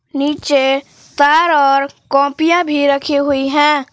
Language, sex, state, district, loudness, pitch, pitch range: Hindi, female, Jharkhand, Palamu, -14 LUFS, 285 Hz, 275-300 Hz